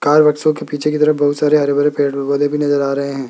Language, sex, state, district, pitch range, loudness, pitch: Hindi, male, Rajasthan, Jaipur, 140-150 Hz, -15 LUFS, 145 Hz